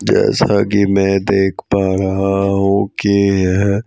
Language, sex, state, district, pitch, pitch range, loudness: Hindi, male, Madhya Pradesh, Bhopal, 100 Hz, 95-100 Hz, -15 LUFS